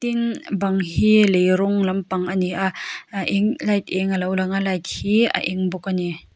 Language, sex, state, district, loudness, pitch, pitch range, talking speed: Mizo, female, Mizoram, Aizawl, -21 LUFS, 190 Hz, 185-205 Hz, 215 wpm